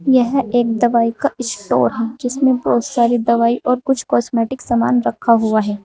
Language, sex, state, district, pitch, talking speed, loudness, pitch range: Hindi, female, Uttar Pradesh, Saharanpur, 240 Hz, 175 wpm, -16 LUFS, 230-255 Hz